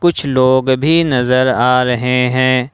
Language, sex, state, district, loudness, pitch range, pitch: Hindi, male, Jharkhand, Ranchi, -13 LUFS, 125-135 Hz, 130 Hz